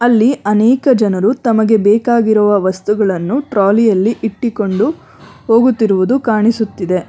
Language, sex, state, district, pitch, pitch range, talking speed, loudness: Kannada, female, Karnataka, Bangalore, 220 Hz, 205-235 Hz, 95 wpm, -13 LUFS